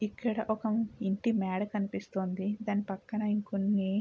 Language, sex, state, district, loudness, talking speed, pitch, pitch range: Telugu, female, Andhra Pradesh, Chittoor, -33 LUFS, 120 wpm, 210 Hz, 195-220 Hz